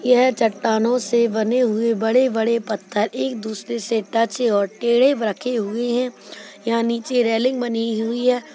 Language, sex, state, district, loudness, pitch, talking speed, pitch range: Hindi, female, Chhattisgarh, Kabirdham, -20 LUFS, 230 Hz, 160 wpm, 220-245 Hz